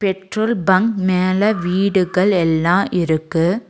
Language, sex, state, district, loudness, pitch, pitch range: Tamil, female, Tamil Nadu, Nilgiris, -17 LUFS, 185 Hz, 175-200 Hz